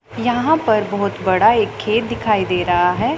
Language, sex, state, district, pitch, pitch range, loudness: Hindi, female, Punjab, Pathankot, 210 Hz, 190-230 Hz, -17 LUFS